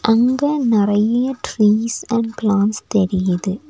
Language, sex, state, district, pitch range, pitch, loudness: Tamil, female, Tamil Nadu, Nilgiris, 205-240 Hz, 220 Hz, -17 LUFS